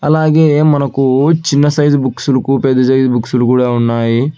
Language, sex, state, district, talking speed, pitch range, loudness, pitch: Telugu, male, Telangana, Hyderabad, 165 wpm, 125-150 Hz, -12 LUFS, 135 Hz